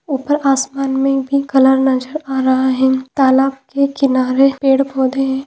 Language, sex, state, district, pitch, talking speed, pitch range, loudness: Hindi, female, Jharkhand, Jamtara, 270 Hz, 165 wpm, 265-275 Hz, -15 LUFS